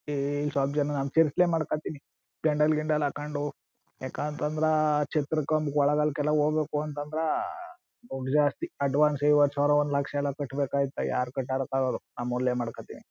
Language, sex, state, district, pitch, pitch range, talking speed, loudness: Kannada, male, Karnataka, Chamarajanagar, 145 Hz, 140-150 Hz, 130 wpm, -28 LUFS